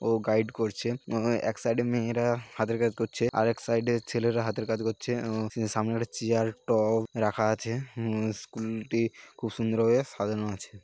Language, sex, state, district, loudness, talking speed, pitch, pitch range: Bengali, male, West Bengal, Paschim Medinipur, -29 LUFS, 155 wpm, 115 Hz, 110-115 Hz